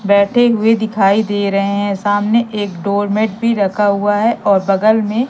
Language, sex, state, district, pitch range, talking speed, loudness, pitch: Hindi, female, Madhya Pradesh, Katni, 200-220 Hz, 190 wpm, -14 LUFS, 205 Hz